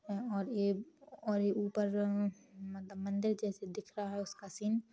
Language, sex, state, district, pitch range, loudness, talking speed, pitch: Hindi, female, Chhattisgarh, Rajnandgaon, 200-210 Hz, -37 LUFS, 185 wpm, 205 Hz